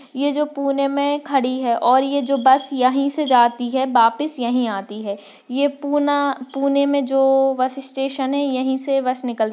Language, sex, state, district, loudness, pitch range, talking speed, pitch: Hindi, female, Maharashtra, Pune, -19 LUFS, 255-280 Hz, 195 wpm, 270 Hz